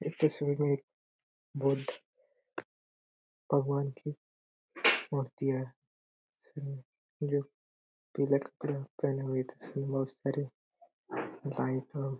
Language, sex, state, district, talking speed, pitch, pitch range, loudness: Hindi, male, Chhattisgarh, Korba, 95 wpm, 140 Hz, 135-145 Hz, -34 LUFS